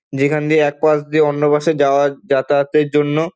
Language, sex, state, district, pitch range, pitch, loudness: Bengali, male, West Bengal, Dakshin Dinajpur, 145-155 Hz, 150 Hz, -15 LUFS